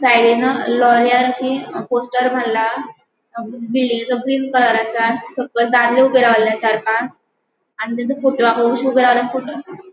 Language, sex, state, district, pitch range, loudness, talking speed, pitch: Konkani, female, Goa, North and South Goa, 235-255 Hz, -16 LUFS, 115 wpm, 245 Hz